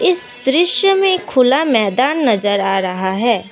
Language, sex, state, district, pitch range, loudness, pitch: Hindi, female, Assam, Kamrup Metropolitan, 200-335 Hz, -14 LUFS, 250 Hz